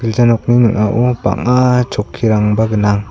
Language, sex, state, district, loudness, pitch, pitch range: Garo, male, Meghalaya, South Garo Hills, -13 LUFS, 115 Hz, 105-120 Hz